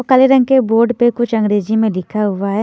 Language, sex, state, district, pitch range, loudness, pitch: Hindi, female, Haryana, Jhajjar, 210-245 Hz, -14 LUFS, 225 Hz